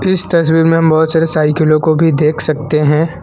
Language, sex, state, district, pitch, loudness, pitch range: Hindi, male, Assam, Kamrup Metropolitan, 160 Hz, -12 LUFS, 155-165 Hz